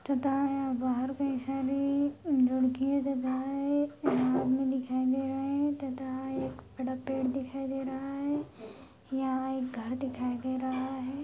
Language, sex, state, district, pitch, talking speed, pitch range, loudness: Hindi, female, Bihar, Madhepura, 265 Hz, 140 wpm, 260-275 Hz, -32 LUFS